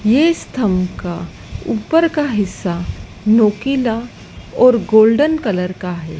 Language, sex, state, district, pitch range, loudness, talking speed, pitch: Hindi, female, Madhya Pradesh, Dhar, 180-250 Hz, -16 LUFS, 125 wpm, 215 Hz